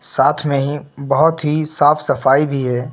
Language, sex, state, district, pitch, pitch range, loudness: Hindi, male, Uttar Pradesh, Lucknow, 145 Hz, 135-150 Hz, -16 LUFS